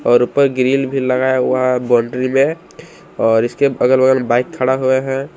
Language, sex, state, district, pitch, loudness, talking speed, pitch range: Hindi, male, Jharkhand, Palamu, 130 Hz, -15 LUFS, 190 wpm, 125-135 Hz